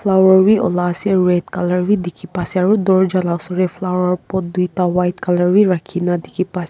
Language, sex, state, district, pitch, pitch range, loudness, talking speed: Nagamese, female, Nagaland, Kohima, 180 Hz, 180-190 Hz, -16 LUFS, 230 wpm